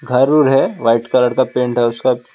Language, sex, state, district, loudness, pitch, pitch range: Hindi, male, Assam, Kamrup Metropolitan, -14 LUFS, 125 Hz, 120-130 Hz